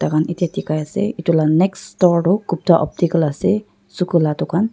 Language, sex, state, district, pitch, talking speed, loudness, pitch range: Nagamese, female, Nagaland, Dimapur, 175 Hz, 190 wpm, -18 LUFS, 160-190 Hz